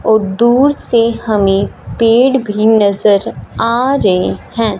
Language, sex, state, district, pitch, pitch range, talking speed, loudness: Hindi, female, Punjab, Fazilka, 225 Hz, 205-235 Hz, 125 wpm, -12 LUFS